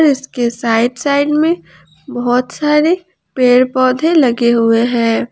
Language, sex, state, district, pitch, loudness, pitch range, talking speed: Hindi, female, Jharkhand, Ranchi, 250 Hz, -13 LUFS, 235-295 Hz, 125 wpm